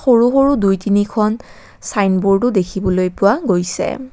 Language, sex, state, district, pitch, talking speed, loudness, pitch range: Assamese, female, Assam, Kamrup Metropolitan, 205 Hz, 115 wpm, -15 LUFS, 190-235 Hz